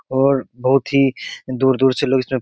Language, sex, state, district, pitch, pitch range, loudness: Hindi, male, Bihar, Begusarai, 130 Hz, 130-135 Hz, -17 LUFS